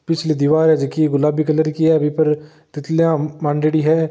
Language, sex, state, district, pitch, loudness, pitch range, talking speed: Marwari, male, Rajasthan, Nagaur, 155 Hz, -17 LUFS, 150-160 Hz, 190 wpm